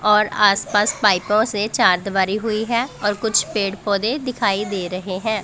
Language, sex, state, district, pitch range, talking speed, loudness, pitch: Hindi, female, Punjab, Pathankot, 195-220 Hz, 165 wpm, -19 LUFS, 210 Hz